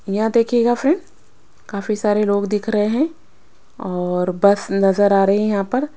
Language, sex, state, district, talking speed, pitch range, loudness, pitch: Hindi, female, Odisha, Sambalpur, 170 wpm, 200-235 Hz, -18 LUFS, 210 Hz